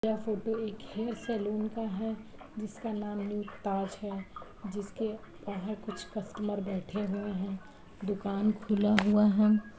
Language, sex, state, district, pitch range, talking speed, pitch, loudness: Hindi, female, Uttar Pradesh, Jalaun, 200-215 Hz, 140 wpm, 210 Hz, -33 LUFS